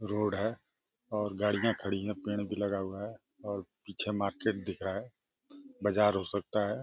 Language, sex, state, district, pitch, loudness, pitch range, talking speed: Hindi, male, Uttar Pradesh, Deoria, 105 Hz, -34 LUFS, 100-105 Hz, 185 wpm